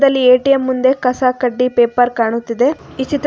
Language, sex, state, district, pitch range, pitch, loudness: Kannada, female, Karnataka, Bangalore, 245-270 Hz, 255 Hz, -14 LUFS